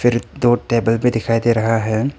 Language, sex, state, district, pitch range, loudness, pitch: Hindi, male, Arunachal Pradesh, Papum Pare, 115-120 Hz, -17 LUFS, 115 Hz